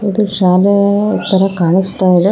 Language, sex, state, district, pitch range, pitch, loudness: Kannada, female, Karnataka, Koppal, 185-200 Hz, 195 Hz, -12 LUFS